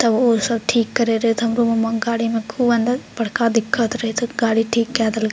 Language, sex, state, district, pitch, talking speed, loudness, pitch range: Maithili, female, Bihar, Purnia, 230 Hz, 225 wpm, -19 LUFS, 225-235 Hz